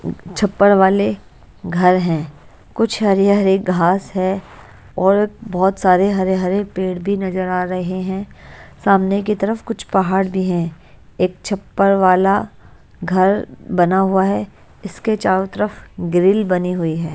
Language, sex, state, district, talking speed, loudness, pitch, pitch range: Hindi, female, Haryana, Jhajjar, 135 wpm, -17 LUFS, 190 Hz, 180-200 Hz